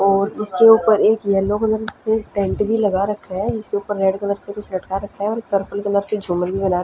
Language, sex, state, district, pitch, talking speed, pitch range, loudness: Hindi, female, Punjab, Fazilka, 205 Hz, 255 wpm, 195-210 Hz, -19 LUFS